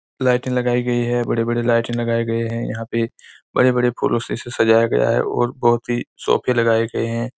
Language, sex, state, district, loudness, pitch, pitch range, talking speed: Hindi, male, Chhattisgarh, Raigarh, -19 LUFS, 120 Hz, 115-120 Hz, 195 wpm